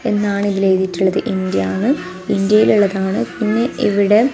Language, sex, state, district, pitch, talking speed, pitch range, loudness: Malayalam, female, Kerala, Kasaragod, 200 Hz, 85 wpm, 190-215 Hz, -16 LUFS